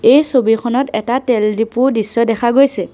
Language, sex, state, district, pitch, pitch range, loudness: Assamese, female, Assam, Sonitpur, 235 Hz, 225-255 Hz, -14 LUFS